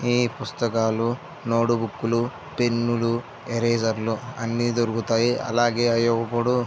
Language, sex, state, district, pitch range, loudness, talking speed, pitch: Telugu, male, Andhra Pradesh, Visakhapatnam, 115-120 Hz, -24 LUFS, 115 wpm, 120 Hz